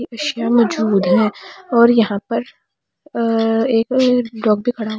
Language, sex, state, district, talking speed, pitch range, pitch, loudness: Hindi, female, Delhi, New Delhi, 110 wpm, 220-245 Hz, 230 Hz, -16 LUFS